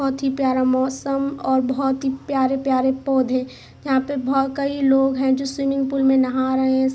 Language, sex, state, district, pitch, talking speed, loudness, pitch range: Hindi, female, Jharkhand, Sahebganj, 265 Hz, 190 wpm, -20 LUFS, 260-275 Hz